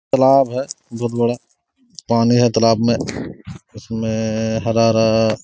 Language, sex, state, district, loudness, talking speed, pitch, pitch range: Hindi, male, Jharkhand, Sahebganj, -17 LUFS, 120 wpm, 115 Hz, 110-120 Hz